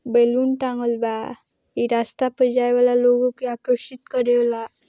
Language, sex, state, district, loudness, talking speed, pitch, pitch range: Bhojpuri, female, Bihar, East Champaran, -21 LUFS, 145 wpm, 245 Hz, 235-250 Hz